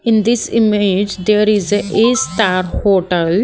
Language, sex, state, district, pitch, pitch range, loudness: English, female, Haryana, Jhajjar, 210 Hz, 190-220 Hz, -14 LUFS